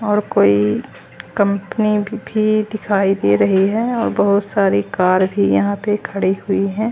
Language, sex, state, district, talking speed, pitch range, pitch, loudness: Hindi, female, Haryana, Charkhi Dadri, 155 wpm, 190-215 Hz, 200 Hz, -17 LUFS